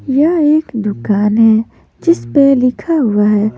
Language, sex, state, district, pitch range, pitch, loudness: Hindi, female, Maharashtra, Mumbai Suburban, 210-300 Hz, 250 Hz, -12 LUFS